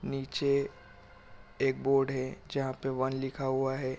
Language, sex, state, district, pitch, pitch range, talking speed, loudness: Hindi, male, Chhattisgarh, Raigarh, 135 Hz, 130-135 Hz, 165 wpm, -32 LUFS